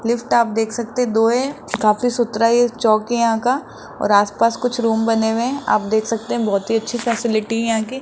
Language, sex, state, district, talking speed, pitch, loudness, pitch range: Hindi, male, Rajasthan, Jaipur, 230 wpm, 230 Hz, -18 LUFS, 220-240 Hz